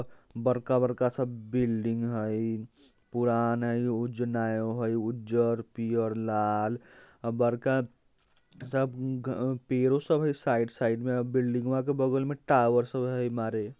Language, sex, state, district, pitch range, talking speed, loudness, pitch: Bajjika, male, Bihar, Vaishali, 115-130 Hz, 130 wpm, -29 LUFS, 120 Hz